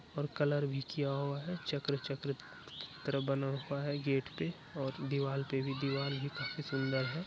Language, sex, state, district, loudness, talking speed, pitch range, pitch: Hindi, male, Bihar, Araria, -37 LUFS, 175 wpm, 135-145 Hz, 140 Hz